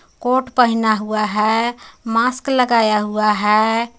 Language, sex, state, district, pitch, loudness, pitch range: Hindi, female, Jharkhand, Garhwa, 225 Hz, -17 LUFS, 215-245 Hz